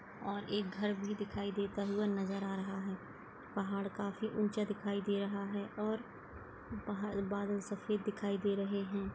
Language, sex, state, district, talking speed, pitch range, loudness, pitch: Hindi, female, Goa, North and South Goa, 165 wpm, 200-205 Hz, -39 LUFS, 200 Hz